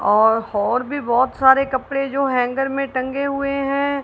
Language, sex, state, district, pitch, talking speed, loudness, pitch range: Hindi, female, Punjab, Kapurthala, 270 Hz, 180 wpm, -19 LUFS, 250-275 Hz